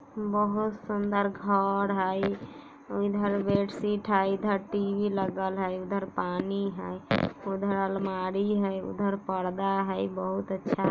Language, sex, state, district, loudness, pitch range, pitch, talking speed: Bajjika, female, Bihar, Vaishali, -29 LUFS, 190-205 Hz, 195 Hz, 125 wpm